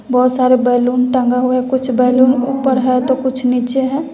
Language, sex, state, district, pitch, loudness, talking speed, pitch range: Hindi, female, Bihar, West Champaran, 255 Hz, -14 LUFS, 200 wpm, 250-260 Hz